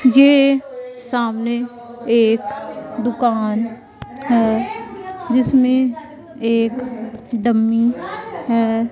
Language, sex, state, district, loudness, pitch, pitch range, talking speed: Hindi, female, Punjab, Pathankot, -18 LUFS, 240 Hz, 230-260 Hz, 60 wpm